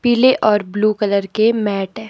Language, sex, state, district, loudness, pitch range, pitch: Hindi, female, Himachal Pradesh, Shimla, -16 LUFS, 205-225 Hz, 215 Hz